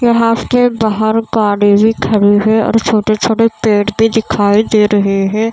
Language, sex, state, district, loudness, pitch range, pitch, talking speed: Hindi, female, Maharashtra, Mumbai Suburban, -12 LUFS, 210-225 Hz, 220 Hz, 150 wpm